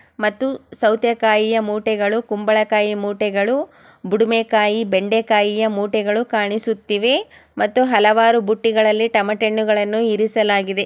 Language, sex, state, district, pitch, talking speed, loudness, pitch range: Kannada, female, Karnataka, Chamarajanagar, 215 Hz, 90 wpm, -17 LUFS, 210-225 Hz